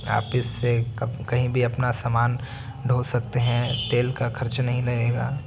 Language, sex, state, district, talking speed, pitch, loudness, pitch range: Hindi, male, Bihar, Jahanabad, 175 wpm, 120 Hz, -24 LUFS, 120-125 Hz